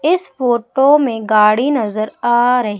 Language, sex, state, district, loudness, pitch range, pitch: Hindi, female, Madhya Pradesh, Umaria, -14 LUFS, 220-275 Hz, 240 Hz